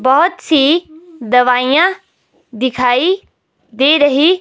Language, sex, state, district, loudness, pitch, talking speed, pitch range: Hindi, female, Himachal Pradesh, Shimla, -13 LUFS, 285 Hz, 80 wpm, 255-340 Hz